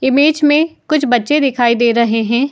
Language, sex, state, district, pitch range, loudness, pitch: Hindi, female, Uttar Pradesh, Muzaffarnagar, 235-295 Hz, -13 LUFS, 270 Hz